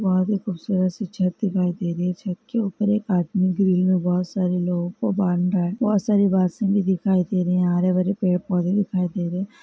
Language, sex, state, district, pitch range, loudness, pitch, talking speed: Hindi, female, Karnataka, Belgaum, 180-200 Hz, -22 LUFS, 185 Hz, 235 wpm